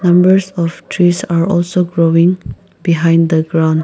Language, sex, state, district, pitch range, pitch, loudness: English, female, Nagaland, Kohima, 165-180 Hz, 170 Hz, -13 LUFS